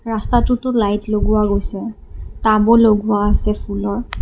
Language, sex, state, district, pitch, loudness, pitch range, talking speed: Assamese, female, Assam, Kamrup Metropolitan, 215 Hz, -16 LUFS, 205-230 Hz, 115 wpm